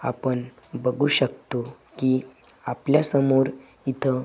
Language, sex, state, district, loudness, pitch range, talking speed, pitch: Marathi, male, Maharashtra, Gondia, -22 LUFS, 125-135 Hz, 100 wpm, 130 Hz